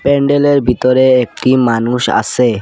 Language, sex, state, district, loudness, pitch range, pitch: Bengali, male, Assam, Kamrup Metropolitan, -12 LUFS, 125-140 Hz, 130 Hz